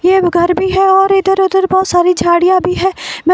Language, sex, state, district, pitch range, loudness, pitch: Hindi, female, Himachal Pradesh, Shimla, 355-385 Hz, -11 LUFS, 370 Hz